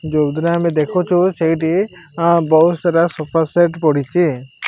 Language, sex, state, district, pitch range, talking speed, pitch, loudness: Odia, male, Odisha, Malkangiri, 155-175 Hz, 130 wpm, 165 Hz, -16 LUFS